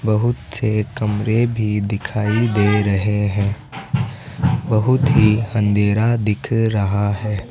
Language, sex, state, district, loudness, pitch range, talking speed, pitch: Hindi, male, Rajasthan, Jaipur, -18 LUFS, 105-120 Hz, 110 wpm, 110 Hz